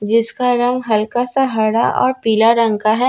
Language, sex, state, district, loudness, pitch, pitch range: Hindi, female, Bihar, Katihar, -15 LUFS, 230 Hz, 220-250 Hz